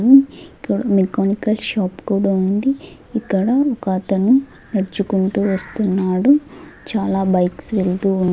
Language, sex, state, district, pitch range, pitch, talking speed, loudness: Telugu, female, Andhra Pradesh, Sri Satya Sai, 190-225 Hz, 200 Hz, 100 wpm, -18 LUFS